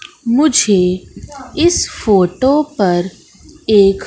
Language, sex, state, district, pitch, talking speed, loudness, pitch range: Hindi, female, Madhya Pradesh, Katni, 220 Hz, 75 wpm, -13 LUFS, 190-300 Hz